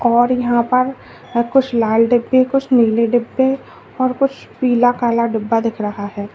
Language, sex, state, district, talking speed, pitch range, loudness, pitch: Hindi, female, Uttar Pradesh, Lalitpur, 160 wpm, 230-255 Hz, -16 LUFS, 240 Hz